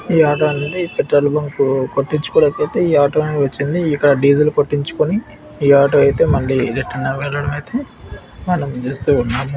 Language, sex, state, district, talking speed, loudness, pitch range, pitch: Telugu, male, Andhra Pradesh, Visakhapatnam, 155 wpm, -16 LUFS, 140-155 Hz, 145 Hz